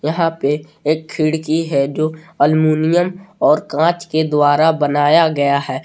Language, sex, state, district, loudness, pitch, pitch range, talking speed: Hindi, male, Jharkhand, Palamu, -16 LUFS, 155 Hz, 145-160 Hz, 145 wpm